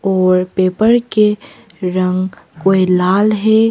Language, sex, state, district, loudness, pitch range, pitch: Hindi, female, Arunachal Pradesh, Papum Pare, -14 LUFS, 185-215 Hz, 190 Hz